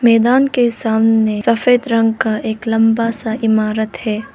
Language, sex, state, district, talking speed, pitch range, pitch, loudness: Hindi, female, Arunachal Pradesh, Lower Dibang Valley, 150 wpm, 220-230 Hz, 225 Hz, -15 LUFS